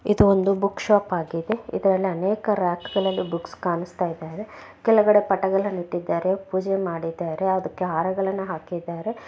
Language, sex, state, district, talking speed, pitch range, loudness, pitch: Kannada, female, Karnataka, Bellary, 125 wpm, 175-200 Hz, -23 LUFS, 190 Hz